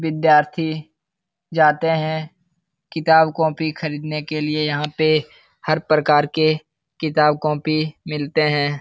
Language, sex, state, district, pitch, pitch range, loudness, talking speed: Hindi, male, Bihar, Lakhisarai, 155 Hz, 150-160 Hz, -19 LUFS, 115 wpm